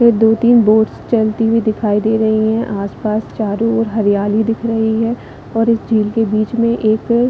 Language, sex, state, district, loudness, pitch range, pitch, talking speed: Hindi, female, Chhattisgarh, Bilaspur, -15 LUFS, 215-230 Hz, 220 Hz, 180 wpm